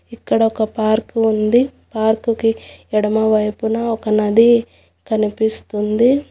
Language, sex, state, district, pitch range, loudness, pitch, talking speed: Telugu, female, Telangana, Hyderabad, 215-230 Hz, -17 LUFS, 220 Hz, 85 wpm